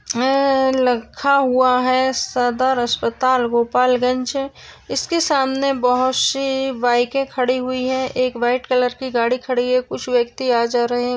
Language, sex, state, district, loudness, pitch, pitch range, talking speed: Hindi, female, Maharashtra, Sindhudurg, -18 LUFS, 255 Hz, 245-265 Hz, 145 wpm